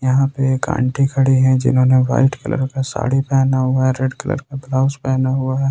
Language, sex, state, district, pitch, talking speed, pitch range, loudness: Hindi, male, Jharkhand, Ranchi, 130 Hz, 220 wpm, 130-135 Hz, -17 LUFS